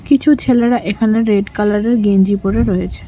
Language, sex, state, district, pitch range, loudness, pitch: Bengali, female, West Bengal, Cooch Behar, 200-240 Hz, -14 LUFS, 210 Hz